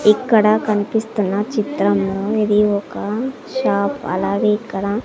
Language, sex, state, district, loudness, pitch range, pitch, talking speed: Telugu, female, Andhra Pradesh, Sri Satya Sai, -18 LUFS, 200-220 Hz, 210 Hz, 95 wpm